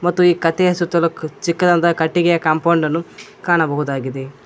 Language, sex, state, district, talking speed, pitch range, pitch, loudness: Kannada, male, Karnataka, Koppal, 110 wpm, 155-175 Hz, 170 Hz, -17 LUFS